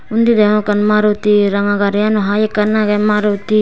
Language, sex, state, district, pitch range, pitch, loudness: Chakma, female, Tripura, West Tripura, 205-215 Hz, 210 Hz, -13 LUFS